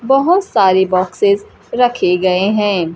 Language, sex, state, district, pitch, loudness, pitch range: Hindi, female, Bihar, Kaimur, 200 Hz, -14 LUFS, 185-240 Hz